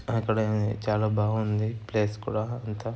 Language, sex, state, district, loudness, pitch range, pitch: Telugu, male, Andhra Pradesh, Anantapur, -28 LUFS, 105-110 Hz, 110 Hz